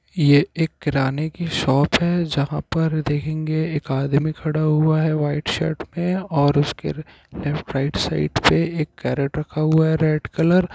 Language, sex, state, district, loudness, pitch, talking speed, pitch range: Hindi, male, Bihar, Jahanabad, -21 LUFS, 155 Hz, 165 wpm, 145-160 Hz